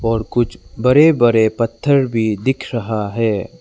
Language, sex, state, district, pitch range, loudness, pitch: Hindi, male, Arunachal Pradesh, Lower Dibang Valley, 110-125 Hz, -16 LUFS, 115 Hz